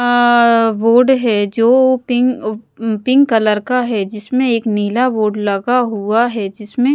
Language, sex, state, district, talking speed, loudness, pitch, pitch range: Hindi, female, Bihar, West Champaran, 145 wpm, -14 LUFS, 230 Hz, 215-250 Hz